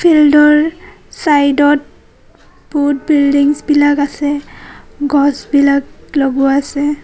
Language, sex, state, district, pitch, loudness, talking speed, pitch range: Assamese, female, Assam, Kamrup Metropolitan, 290 Hz, -12 LUFS, 70 wpm, 285-295 Hz